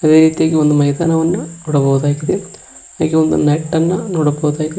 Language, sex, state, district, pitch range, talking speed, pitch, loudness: Kannada, male, Karnataka, Koppal, 150-165 Hz, 125 wpm, 160 Hz, -15 LUFS